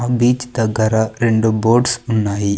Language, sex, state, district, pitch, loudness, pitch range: Telugu, male, Andhra Pradesh, Sri Satya Sai, 115 Hz, -16 LUFS, 110-120 Hz